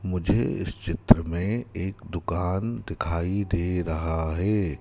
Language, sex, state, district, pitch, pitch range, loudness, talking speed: Hindi, male, Madhya Pradesh, Dhar, 90 Hz, 85-105 Hz, -26 LUFS, 125 wpm